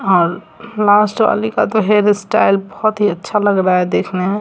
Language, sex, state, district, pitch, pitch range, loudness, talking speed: Hindi, female, Bihar, Samastipur, 205 Hz, 190-215 Hz, -14 LUFS, 190 wpm